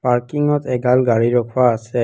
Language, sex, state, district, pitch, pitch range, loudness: Assamese, female, Assam, Kamrup Metropolitan, 125 Hz, 120-130 Hz, -17 LUFS